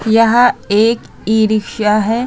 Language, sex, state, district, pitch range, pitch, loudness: Hindi, female, Uttar Pradesh, Hamirpur, 215-230 Hz, 220 Hz, -13 LUFS